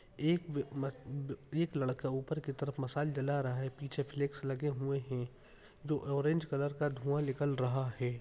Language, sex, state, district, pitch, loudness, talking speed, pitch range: Hindi, male, Bihar, Jahanabad, 140 Hz, -37 LUFS, 170 wpm, 135-145 Hz